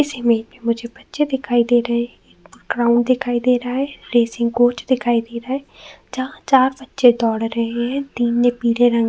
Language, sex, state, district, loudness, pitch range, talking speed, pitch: Hindi, female, Uttar Pradesh, Jyotiba Phule Nagar, -18 LUFS, 235-260 Hz, 205 wpm, 240 Hz